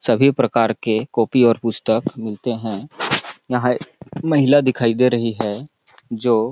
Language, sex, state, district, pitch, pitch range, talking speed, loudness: Hindi, male, Chhattisgarh, Balrampur, 120 Hz, 115-130 Hz, 140 wpm, -19 LUFS